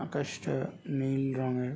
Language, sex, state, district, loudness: Bengali, male, West Bengal, Jhargram, -33 LUFS